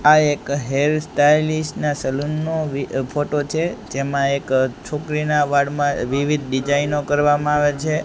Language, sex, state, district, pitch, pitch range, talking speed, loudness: Gujarati, male, Gujarat, Gandhinagar, 145 Hz, 140-150 Hz, 135 wpm, -20 LUFS